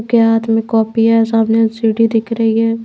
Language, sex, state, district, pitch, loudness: Hindi, female, Bihar, Patna, 225 Hz, -13 LUFS